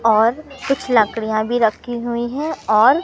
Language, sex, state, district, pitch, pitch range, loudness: Hindi, male, Madhya Pradesh, Katni, 235 Hz, 225-270 Hz, -18 LUFS